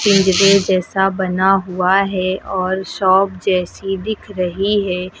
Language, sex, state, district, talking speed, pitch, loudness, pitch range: Hindi, female, Uttar Pradesh, Lucknow, 125 wpm, 190 Hz, -16 LUFS, 185-195 Hz